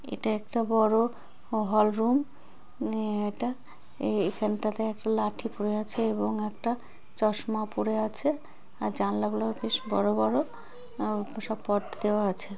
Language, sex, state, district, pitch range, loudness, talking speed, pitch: Bengali, female, West Bengal, Jalpaiguri, 205-225 Hz, -29 LUFS, 130 wpm, 215 Hz